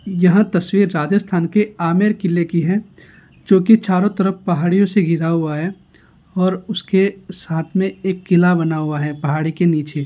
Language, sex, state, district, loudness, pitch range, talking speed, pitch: Hindi, male, Rajasthan, Nagaur, -17 LUFS, 165-195 Hz, 175 wpm, 185 Hz